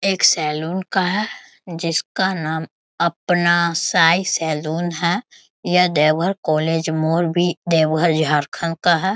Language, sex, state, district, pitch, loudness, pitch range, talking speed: Hindi, male, Bihar, Bhagalpur, 170 Hz, -19 LUFS, 160-180 Hz, 110 wpm